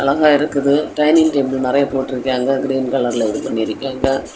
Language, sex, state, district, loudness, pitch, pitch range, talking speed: Tamil, female, Tamil Nadu, Kanyakumari, -17 LUFS, 135 Hz, 130-145 Hz, 135 wpm